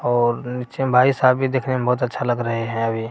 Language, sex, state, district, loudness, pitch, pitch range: Maithili, male, Bihar, Bhagalpur, -20 LUFS, 125 Hz, 120-130 Hz